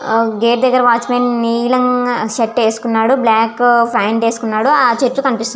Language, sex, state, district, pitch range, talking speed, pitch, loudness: Telugu, female, Andhra Pradesh, Visakhapatnam, 225-250 Hz, 140 wpm, 235 Hz, -13 LUFS